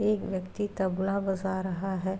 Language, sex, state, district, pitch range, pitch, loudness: Hindi, female, Uttar Pradesh, Varanasi, 190-200 Hz, 190 Hz, -31 LUFS